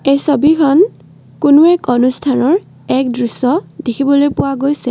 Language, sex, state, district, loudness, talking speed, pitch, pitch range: Assamese, female, Assam, Kamrup Metropolitan, -13 LUFS, 120 wpm, 280 Hz, 255-300 Hz